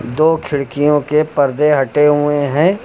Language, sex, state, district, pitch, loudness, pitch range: Hindi, male, Uttar Pradesh, Lucknow, 150 Hz, -14 LUFS, 140-155 Hz